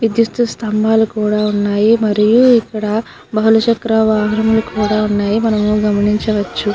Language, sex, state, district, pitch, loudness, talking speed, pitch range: Telugu, female, Andhra Pradesh, Krishna, 215 Hz, -14 LUFS, 105 wpm, 210-225 Hz